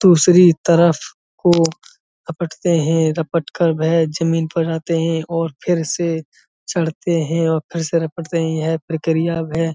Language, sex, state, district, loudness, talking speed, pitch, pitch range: Hindi, male, Uttar Pradesh, Muzaffarnagar, -18 LUFS, 160 wpm, 165 Hz, 160-170 Hz